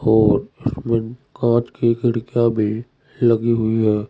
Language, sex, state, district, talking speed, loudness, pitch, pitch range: Hindi, male, Uttar Pradesh, Saharanpur, 130 wpm, -19 LUFS, 115 Hz, 110-120 Hz